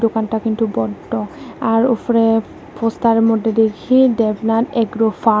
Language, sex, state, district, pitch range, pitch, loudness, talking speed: Bengali, female, Tripura, West Tripura, 220-230 Hz, 225 Hz, -16 LUFS, 135 wpm